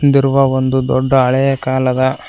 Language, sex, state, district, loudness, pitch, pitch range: Kannada, male, Karnataka, Koppal, -14 LUFS, 130 Hz, 130-135 Hz